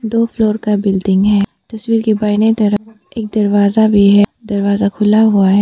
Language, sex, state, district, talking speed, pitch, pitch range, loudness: Hindi, female, Arunachal Pradesh, Papum Pare, 170 wpm, 210 Hz, 205-220 Hz, -13 LUFS